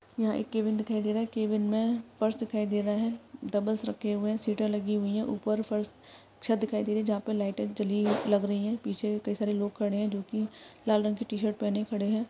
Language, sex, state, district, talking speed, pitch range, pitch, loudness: Hindi, female, Maharashtra, Solapur, 255 wpm, 210-220 Hz, 215 Hz, -30 LUFS